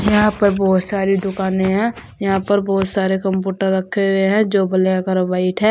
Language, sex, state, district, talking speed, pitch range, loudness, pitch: Hindi, female, Uttar Pradesh, Saharanpur, 200 wpm, 190-200 Hz, -17 LUFS, 195 Hz